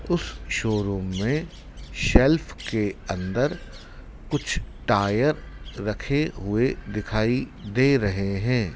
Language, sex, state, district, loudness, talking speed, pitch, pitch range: Hindi, male, Madhya Pradesh, Dhar, -25 LUFS, 95 wpm, 110 Hz, 100-135 Hz